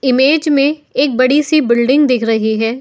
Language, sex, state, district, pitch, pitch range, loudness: Hindi, female, Uttar Pradesh, Muzaffarnagar, 265 Hz, 235-290 Hz, -13 LUFS